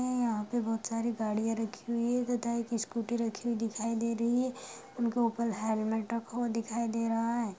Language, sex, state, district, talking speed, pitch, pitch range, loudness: Hindi, female, Bihar, Sitamarhi, 205 wpm, 230 Hz, 225-235 Hz, -33 LUFS